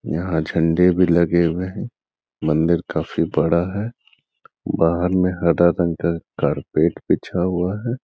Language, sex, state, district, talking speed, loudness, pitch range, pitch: Hindi, male, Bihar, Gaya, 125 wpm, -20 LUFS, 85-90 Hz, 85 Hz